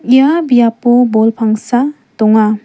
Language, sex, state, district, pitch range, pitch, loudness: Garo, female, Meghalaya, West Garo Hills, 220-260 Hz, 235 Hz, -11 LUFS